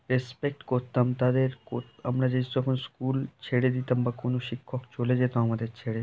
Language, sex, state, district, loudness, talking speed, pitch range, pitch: Bengali, male, West Bengal, North 24 Parganas, -29 LUFS, 160 wpm, 125-130 Hz, 125 Hz